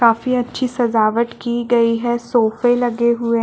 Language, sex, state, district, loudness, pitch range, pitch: Hindi, female, Chhattisgarh, Balrampur, -17 LUFS, 230-245 Hz, 235 Hz